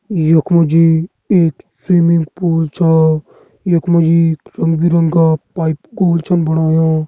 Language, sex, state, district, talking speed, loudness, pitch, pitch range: Garhwali, male, Uttarakhand, Uttarkashi, 120 wpm, -13 LUFS, 165 Hz, 160-170 Hz